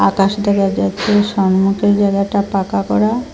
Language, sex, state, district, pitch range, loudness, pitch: Bengali, female, Assam, Hailakandi, 195-205 Hz, -15 LUFS, 200 Hz